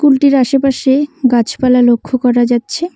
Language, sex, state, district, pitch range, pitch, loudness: Bengali, female, West Bengal, Cooch Behar, 245-280 Hz, 260 Hz, -12 LUFS